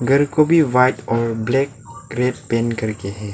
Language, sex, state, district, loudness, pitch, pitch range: Hindi, male, Arunachal Pradesh, Lower Dibang Valley, -18 LUFS, 120 Hz, 115-135 Hz